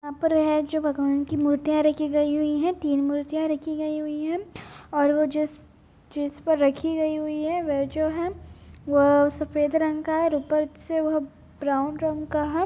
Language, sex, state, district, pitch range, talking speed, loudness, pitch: Hindi, female, Bihar, Bhagalpur, 290-315 Hz, 195 wpm, -24 LUFS, 305 Hz